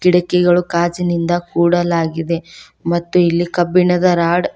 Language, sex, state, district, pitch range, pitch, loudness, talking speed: Kannada, female, Karnataka, Koppal, 170-180 Hz, 175 Hz, -15 LUFS, 105 wpm